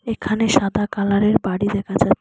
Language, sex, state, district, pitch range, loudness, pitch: Bengali, female, West Bengal, Alipurduar, 200-220 Hz, -19 LUFS, 205 Hz